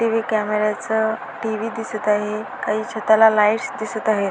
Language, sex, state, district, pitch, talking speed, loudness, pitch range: Marathi, female, Maharashtra, Dhule, 220 Hz, 155 wpm, -20 LUFS, 210-220 Hz